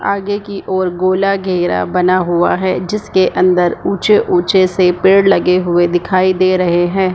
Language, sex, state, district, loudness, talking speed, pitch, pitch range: Hindi, female, Jharkhand, Sahebganj, -13 LUFS, 170 wpm, 185 Hz, 180-190 Hz